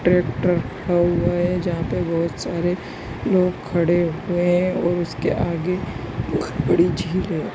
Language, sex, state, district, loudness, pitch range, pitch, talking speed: Hindi, male, Bihar, Bhagalpur, -21 LUFS, 170-180 Hz, 175 Hz, 150 wpm